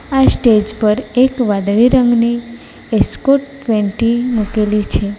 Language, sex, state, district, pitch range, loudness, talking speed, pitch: Gujarati, female, Gujarat, Valsad, 210-250 Hz, -14 LUFS, 115 wpm, 235 Hz